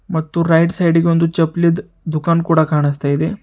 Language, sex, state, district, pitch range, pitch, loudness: Kannada, male, Karnataka, Bidar, 160-170 Hz, 165 Hz, -16 LUFS